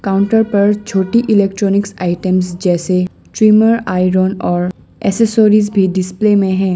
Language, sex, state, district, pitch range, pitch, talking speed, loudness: Hindi, female, Assam, Sonitpur, 185-210 Hz, 195 Hz, 125 wpm, -13 LUFS